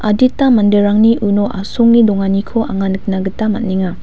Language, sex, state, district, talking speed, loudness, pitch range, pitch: Garo, female, Meghalaya, West Garo Hills, 135 wpm, -13 LUFS, 195-225 Hz, 205 Hz